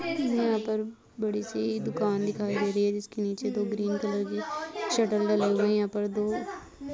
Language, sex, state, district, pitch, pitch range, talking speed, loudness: Hindi, female, Andhra Pradesh, Krishna, 210 Hz, 205-225 Hz, 200 wpm, -29 LUFS